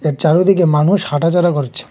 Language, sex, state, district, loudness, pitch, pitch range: Bengali, male, Tripura, West Tripura, -14 LUFS, 165 Hz, 150-175 Hz